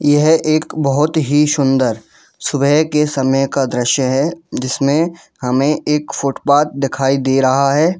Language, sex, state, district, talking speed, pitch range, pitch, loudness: Hindi, male, Jharkhand, Jamtara, 140 wpm, 135-150 Hz, 145 Hz, -15 LUFS